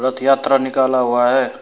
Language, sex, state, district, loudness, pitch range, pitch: Hindi, male, West Bengal, Alipurduar, -16 LUFS, 130-135 Hz, 130 Hz